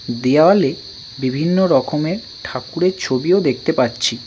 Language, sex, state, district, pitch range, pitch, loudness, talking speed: Bengali, male, West Bengal, Cooch Behar, 125-170 Hz, 130 Hz, -17 LUFS, 100 wpm